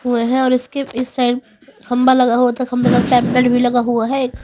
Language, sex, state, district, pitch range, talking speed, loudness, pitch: Hindi, female, Haryana, Charkhi Dadri, 245-255 Hz, 215 wpm, -16 LUFS, 250 Hz